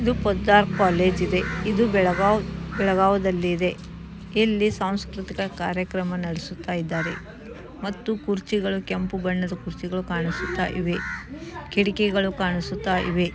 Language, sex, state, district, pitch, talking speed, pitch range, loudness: Kannada, female, Karnataka, Belgaum, 185 Hz, 90 wpm, 180-200 Hz, -24 LUFS